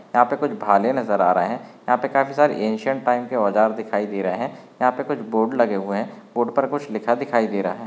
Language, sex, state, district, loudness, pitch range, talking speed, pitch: Hindi, male, Andhra Pradesh, Guntur, -21 LUFS, 110-135 Hz, 235 wpm, 120 Hz